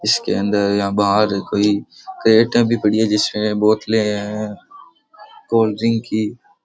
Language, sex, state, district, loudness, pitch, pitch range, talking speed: Rajasthani, male, Rajasthan, Churu, -17 LUFS, 105 Hz, 105-110 Hz, 125 wpm